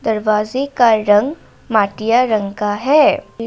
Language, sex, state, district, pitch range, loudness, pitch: Hindi, female, Assam, Kamrup Metropolitan, 210-265 Hz, -15 LUFS, 225 Hz